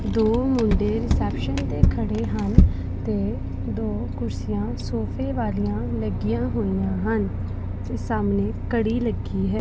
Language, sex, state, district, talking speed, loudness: Punjabi, female, Punjab, Pathankot, 120 wpm, -24 LUFS